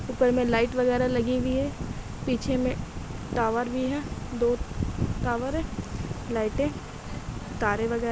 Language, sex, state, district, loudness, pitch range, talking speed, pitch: Hindi, female, Bihar, Darbhanga, -28 LUFS, 235-255 Hz, 140 wpm, 245 Hz